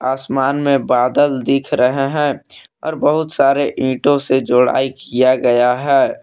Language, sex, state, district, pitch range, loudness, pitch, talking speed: Hindi, male, Jharkhand, Palamu, 130-145 Hz, -15 LUFS, 135 Hz, 145 wpm